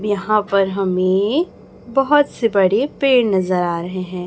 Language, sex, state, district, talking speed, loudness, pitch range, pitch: Hindi, male, Chhattisgarh, Raipur, 155 wpm, -17 LUFS, 185-240 Hz, 200 Hz